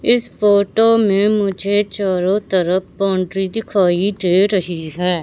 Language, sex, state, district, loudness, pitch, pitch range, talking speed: Hindi, male, Madhya Pradesh, Katni, -16 LUFS, 195 Hz, 185-205 Hz, 125 wpm